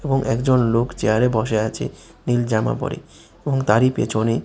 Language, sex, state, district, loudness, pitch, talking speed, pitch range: Bengali, male, Tripura, West Tripura, -20 LUFS, 120 Hz, 175 wpm, 110-130 Hz